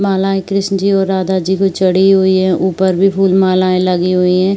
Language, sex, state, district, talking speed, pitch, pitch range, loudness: Hindi, female, Uttar Pradesh, Varanasi, 225 wpm, 190 Hz, 185-195 Hz, -13 LUFS